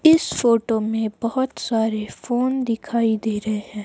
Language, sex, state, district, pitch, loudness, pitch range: Hindi, male, Himachal Pradesh, Shimla, 230 Hz, -22 LUFS, 220-245 Hz